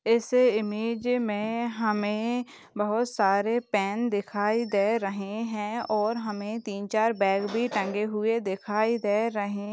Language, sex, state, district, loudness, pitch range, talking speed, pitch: Hindi, female, Chhattisgarh, Jashpur, -27 LUFS, 205-230 Hz, 135 wpm, 215 Hz